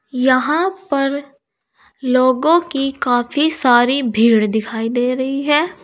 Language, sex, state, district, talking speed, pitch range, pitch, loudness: Hindi, female, Uttar Pradesh, Saharanpur, 115 wpm, 245-290 Hz, 265 Hz, -16 LUFS